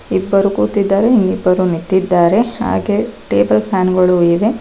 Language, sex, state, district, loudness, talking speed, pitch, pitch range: Kannada, female, Karnataka, Bangalore, -14 LUFS, 130 wpm, 190 Hz, 175-205 Hz